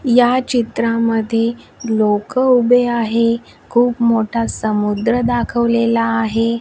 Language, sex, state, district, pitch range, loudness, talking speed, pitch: Marathi, female, Maharashtra, Washim, 225-240 Hz, -16 LUFS, 90 wpm, 230 Hz